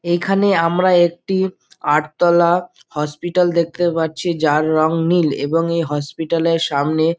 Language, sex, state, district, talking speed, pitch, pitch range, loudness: Bengali, male, West Bengal, Dakshin Dinajpur, 150 wpm, 165 Hz, 155-175 Hz, -17 LUFS